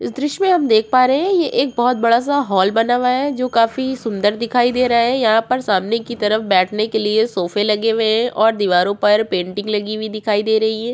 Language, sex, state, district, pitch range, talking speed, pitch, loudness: Hindi, female, Uttar Pradesh, Jyotiba Phule Nagar, 210-250 Hz, 250 wpm, 225 Hz, -16 LUFS